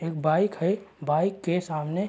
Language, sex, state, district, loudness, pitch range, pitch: Hindi, male, Chhattisgarh, Raigarh, -26 LUFS, 155-195 Hz, 175 Hz